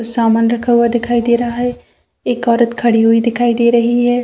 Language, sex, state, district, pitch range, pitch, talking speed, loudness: Hindi, female, Jharkhand, Jamtara, 235-240 Hz, 235 Hz, 210 wpm, -14 LUFS